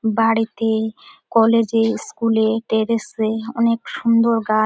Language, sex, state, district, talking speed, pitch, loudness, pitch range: Bengali, female, West Bengal, Dakshin Dinajpur, 90 wpm, 225 Hz, -19 LUFS, 220-230 Hz